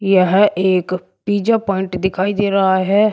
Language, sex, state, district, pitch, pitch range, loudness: Hindi, male, Uttar Pradesh, Shamli, 190 Hz, 185-205 Hz, -16 LUFS